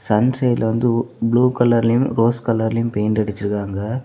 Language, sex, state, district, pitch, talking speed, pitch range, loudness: Tamil, male, Tamil Nadu, Kanyakumari, 115 Hz, 135 wpm, 110-120 Hz, -18 LUFS